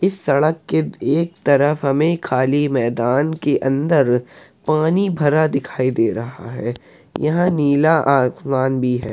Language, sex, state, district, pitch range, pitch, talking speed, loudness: Hindi, male, Uttar Pradesh, Hamirpur, 130-160 Hz, 140 Hz, 140 wpm, -18 LUFS